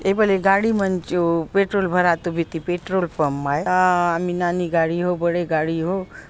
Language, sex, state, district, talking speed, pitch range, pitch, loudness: Halbi, female, Chhattisgarh, Bastar, 150 wpm, 170-190 Hz, 175 Hz, -20 LUFS